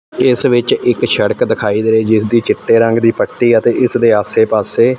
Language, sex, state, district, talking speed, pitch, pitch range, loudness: Punjabi, male, Punjab, Fazilka, 205 wpm, 115 Hz, 110-120 Hz, -12 LUFS